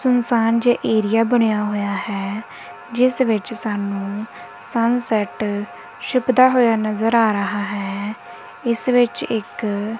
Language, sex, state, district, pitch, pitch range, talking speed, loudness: Punjabi, female, Punjab, Kapurthala, 215 Hz, 200-235 Hz, 120 wpm, -19 LUFS